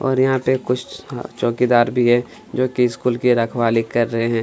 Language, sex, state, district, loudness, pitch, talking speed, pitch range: Hindi, male, Chhattisgarh, Kabirdham, -18 LUFS, 120 Hz, 190 wpm, 115-125 Hz